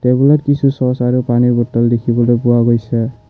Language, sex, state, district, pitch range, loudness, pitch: Assamese, male, Assam, Kamrup Metropolitan, 120-125 Hz, -14 LUFS, 120 Hz